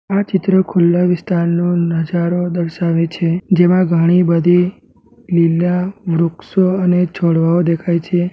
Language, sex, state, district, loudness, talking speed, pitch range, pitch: Gujarati, male, Gujarat, Valsad, -15 LUFS, 115 wpm, 170-180 Hz, 175 Hz